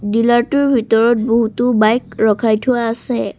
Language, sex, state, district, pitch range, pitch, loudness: Assamese, female, Assam, Sonitpur, 220-240 Hz, 230 Hz, -15 LUFS